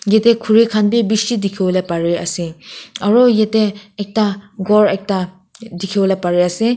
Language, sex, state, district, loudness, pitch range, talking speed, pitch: Nagamese, female, Nagaland, Kohima, -15 LUFS, 185-220 Hz, 140 wpm, 205 Hz